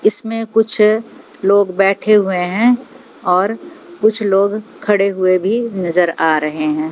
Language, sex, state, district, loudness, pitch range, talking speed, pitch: Hindi, female, Haryana, Jhajjar, -15 LUFS, 185-220 Hz, 140 wpm, 200 Hz